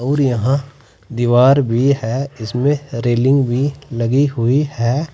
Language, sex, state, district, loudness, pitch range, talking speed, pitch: Hindi, male, Uttar Pradesh, Saharanpur, -16 LUFS, 120-140 Hz, 130 wpm, 130 Hz